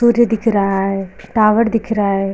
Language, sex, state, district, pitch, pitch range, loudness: Hindi, female, Uttar Pradesh, Lucknow, 215 Hz, 195-225 Hz, -16 LUFS